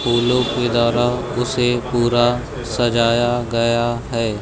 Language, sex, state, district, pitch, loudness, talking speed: Hindi, male, Madhya Pradesh, Katni, 120 Hz, -18 LUFS, 95 wpm